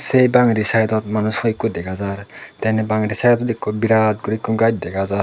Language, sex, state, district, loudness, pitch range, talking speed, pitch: Chakma, male, Tripura, Dhalai, -18 LUFS, 105-115 Hz, 195 wpm, 110 Hz